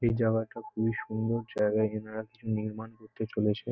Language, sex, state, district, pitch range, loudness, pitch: Bengali, male, West Bengal, North 24 Parganas, 110-115 Hz, -31 LUFS, 110 Hz